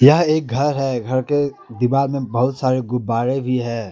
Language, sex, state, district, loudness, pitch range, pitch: Hindi, male, Jharkhand, Ranchi, -19 LUFS, 125-140 Hz, 130 Hz